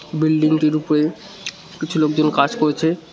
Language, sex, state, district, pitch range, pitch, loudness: Bengali, male, West Bengal, Cooch Behar, 155-165 Hz, 155 Hz, -18 LUFS